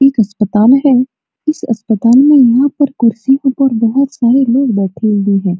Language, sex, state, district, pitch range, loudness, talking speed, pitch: Hindi, female, Bihar, Supaul, 220-270 Hz, -11 LUFS, 160 wpm, 245 Hz